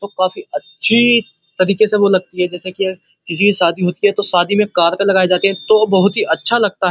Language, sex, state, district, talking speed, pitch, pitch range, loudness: Hindi, male, Uttar Pradesh, Muzaffarnagar, 250 wpm, 195 Hz, 180-210 Hz, -14 LUFS